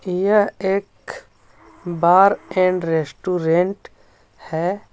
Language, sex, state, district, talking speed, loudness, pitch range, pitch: Hindi, male, Jharkhand, Ranchi, 75 wpm, -19 LUFS, 170-195 Hz, 180 Hz